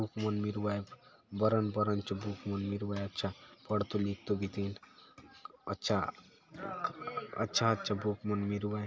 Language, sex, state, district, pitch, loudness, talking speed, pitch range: Halbi, male, Chhattisgarh, Bastar, 105 Hz, -35 LUFS, 140 wpm, 100-105 Hz